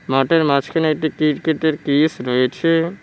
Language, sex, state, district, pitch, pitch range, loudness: Bengali, male, West Bengal, Cooch Behar, 155 Hz, 140-160 Hz, -18 LUFS